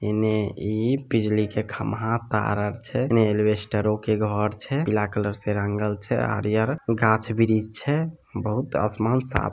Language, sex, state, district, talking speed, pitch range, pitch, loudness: Maithili, male, Bihar, Samastipur, 160 wpm, 105-115 Hz, 110 Hz, -24 LUFS